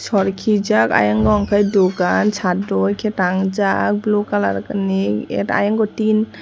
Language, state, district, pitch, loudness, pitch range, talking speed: Kokborok, Tripura, West Tripura, 195 Hz, -17 LUFS, 180-210 Hz, 140 wpm